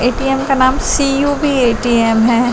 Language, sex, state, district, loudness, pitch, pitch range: Hindi, female, Uttar Pradesh, Gorakhpur, -13 LUFS, 255 Hz, 235-275 Hz